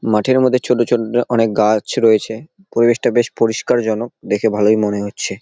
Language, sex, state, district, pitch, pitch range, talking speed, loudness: Bengali, male, West Bengal, Jalpaiguri, 115 Hz, 105-120 Hz, 165 wpm, -16 LUFS